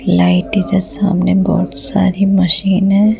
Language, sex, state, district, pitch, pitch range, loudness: Hindi, female, Rajasthan, Jaipur, 195 Hz, 185-200 Hz, -13 LUFS